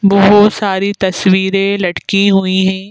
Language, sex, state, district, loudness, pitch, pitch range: Hindi, female, Madhya Pradesh, Bhopal, -12 LUFS, 195 Hz, 190-200 Hz